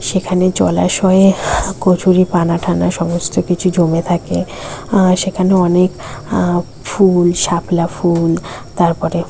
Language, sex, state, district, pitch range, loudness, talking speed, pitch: Bengali, female, West Bengal, North 24 Parganas, 165-185 Hz, -14 LUFS, 105 wpm, 175 Hz